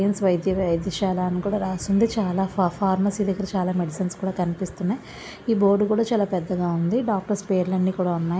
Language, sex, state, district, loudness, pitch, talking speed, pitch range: Telugu, female, Andhra Pradesh, Visakhapatnam, -23 LUFS, 190 Hz, 165 wpm, 180-200 Hz